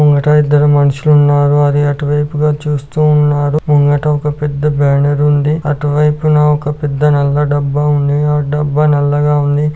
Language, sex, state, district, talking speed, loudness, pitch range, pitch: Telugu, male, Andhra Pradesh, Chittoor, 135 wpm, -12 LUFS, 145-150 Hz, 145 Hz